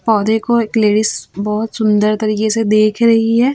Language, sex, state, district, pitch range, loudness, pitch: Hindi, female, Chhattisgarh, Raipur, 215-225 Hz, -14 LUFS, 220 Hz